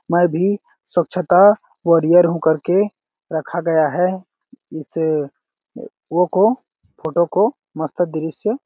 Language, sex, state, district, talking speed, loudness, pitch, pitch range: Hindi, male, Chhattisgarh, Balrampur, 110 wpm, -18 LUFS, 175 Hz, 160-195 Hz